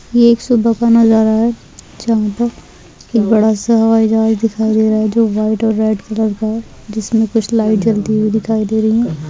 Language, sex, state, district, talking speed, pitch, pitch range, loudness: Hindi, female, Rajasthan, Churu, 195 wpm, 220 Hz, 215-225 Hz, -14 LUFS